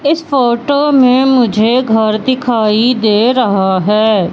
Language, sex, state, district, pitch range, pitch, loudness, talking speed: Hindi, female, Madhya Pradesh, Katni, 215-260 Hz, 240 Hz, -11 LUFS, 125 wpm